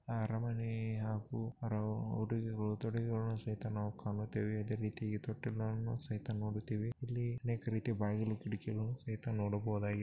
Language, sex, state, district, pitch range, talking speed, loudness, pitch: Kannada, male, Karnataka, Bellary, 105-115 Hz, 125 wpm, -40 LUFS, 110 Hz